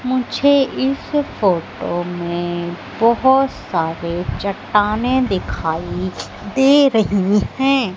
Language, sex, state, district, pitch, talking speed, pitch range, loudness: Hindi, female, Madhya Pradesh, Katni, 205 Hz, 85 wpm, 175-265 Hz, -18 LUFS